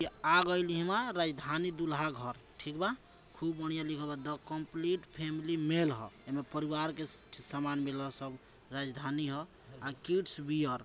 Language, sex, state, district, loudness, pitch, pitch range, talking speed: Maithili, male, Bihar, Samastipur, -35 LUFS, 150 Hz, 135-165 Hz, 165 wpm